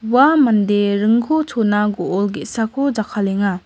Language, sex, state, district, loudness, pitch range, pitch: Garo, female, Meghalaya, West Garo Hills, -17 LUFS, 205-250 Hz, 215 Hz